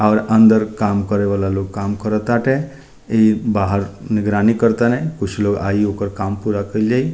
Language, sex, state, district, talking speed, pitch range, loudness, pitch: Bhojpuri, male, Bihar, Muzaffarpur, 170 wpm, 100-115 Hz, -17 LUFS, 105 Hz